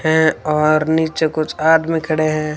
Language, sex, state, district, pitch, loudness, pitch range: Hindi, female, Rajasthan, Bikaner, 155 Hz, -16 LUFS, 155-160 Hz